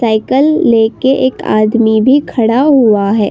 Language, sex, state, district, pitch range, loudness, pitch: Hindi, female, Uttar Pradesh, Budaun, 220-265 Hz, -10 LUFS, 230 Hz